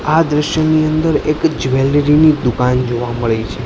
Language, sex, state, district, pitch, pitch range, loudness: Gujarati, male, Gujarat, Gandhinagar, 145 Hz, 125-155 Hz, -14 LUFS